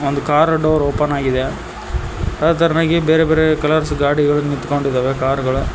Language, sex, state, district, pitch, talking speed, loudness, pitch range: Kannada, male, Karnataka, Koppal, 145 Hz, 145 wpm, -16 LUFS, 140-155 Hz